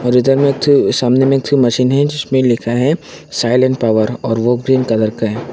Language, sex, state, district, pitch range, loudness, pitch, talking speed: Hindi, male, Arunachal Pradesh, Longding, 115-135 Hz, -14 LUFS, 125 Hz, 240 wpm